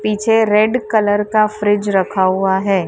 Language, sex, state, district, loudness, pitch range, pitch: Hindi, female, Maharashtra, Mumbai Suburban, -15 LUFS, 195-215 Hz, 210 Hz